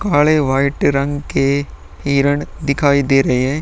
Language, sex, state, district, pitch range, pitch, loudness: Hindi, male, Uttar Pradesh, Muzaffarnagar, 135-145 Hz, 140 Hz, -16 LUFS